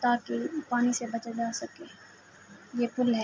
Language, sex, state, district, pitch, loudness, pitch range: Urdu, female, Andhra Pradesh, Anantapur, 240 Hz, -31 LUFS, 230-245 Hz